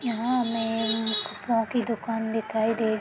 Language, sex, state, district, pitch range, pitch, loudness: Hindi, female, Uttar Pradesh, Deoria, 220-230 Hz, 225 Hz, -25 LUFS